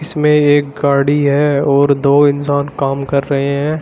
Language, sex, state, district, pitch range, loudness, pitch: Hindi, male, Uttar Pradesh, Shamli, 140-145 Hz, -13 LUFS, 140 Hz